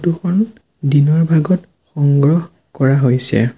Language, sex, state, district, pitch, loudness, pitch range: Assamese, male, Assam, Sonitpur, 155 Hz, -15 LUFS, 140-175 Hz